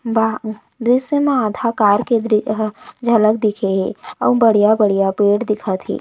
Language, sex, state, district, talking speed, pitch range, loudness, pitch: Chhattisgarhi, female, Chhattisgarh, Raigarh, 160 wpm, 210-235 Hz, -16 LUFS, 215 Hz